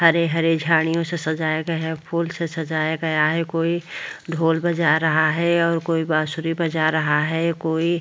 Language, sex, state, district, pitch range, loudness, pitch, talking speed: Hindi, female, Uttar Pradesh, Varanasi, 160-170 Hz, -21 LUFS, 165 Hz, 195 wpm